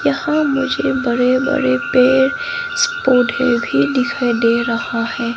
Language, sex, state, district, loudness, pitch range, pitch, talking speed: Hindi, female, Arunachal Pradesh, Lower Dibang Valley, -16 LUFS, 235-285 Hz, 255 Hz, 135 wpm